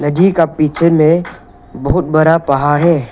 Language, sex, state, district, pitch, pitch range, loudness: Hindi, male, Arunachal Pradesh, Lower Dibang Valley, 155 Hz, 140-170 Hz, -12 LUFS